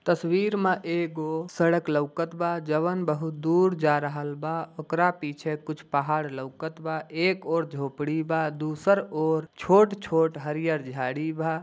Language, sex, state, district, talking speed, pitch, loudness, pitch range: Bhojpuri, male, Bihar, Gopalganj, 145 wpm, 160 Hz, -26 LUFS, 150-170 Hz